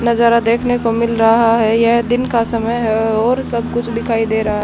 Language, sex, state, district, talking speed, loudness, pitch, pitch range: Hindi, female, Haryana, Charkhi Dadri, 220 wpm, -15 LUFS, 230 Hz, 225-235 Hz